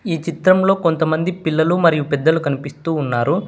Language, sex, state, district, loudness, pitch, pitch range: Telugu, male, Telangana, Hyderabad, -17 LUFS, 165 Hz, 150-175 Hz